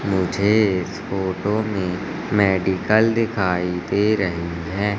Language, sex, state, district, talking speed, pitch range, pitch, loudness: Hindi, male, Madhya Pradesh, Katni, 95 wpm, 90-105 Hz, 95 Hz, -21 LUFS